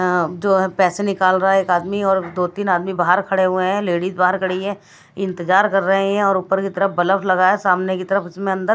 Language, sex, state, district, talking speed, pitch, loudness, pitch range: Hindi, female, Delhi, New Delhi, 225 wpm, 190 Hz, -18 LUFS, 180-195 Hz